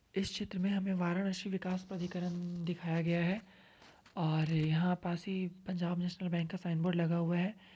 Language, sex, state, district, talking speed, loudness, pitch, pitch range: Hindi, female, Uttar Pradesh, Varanasi, 180 wpm, -36 LUFS, 180 Hz, 170-190 Hz